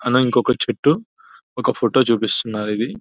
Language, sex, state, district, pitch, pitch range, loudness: Telugu, male, Telangana, Nalgonda, 125 Hz, 110-130 Hz, -19 LUFS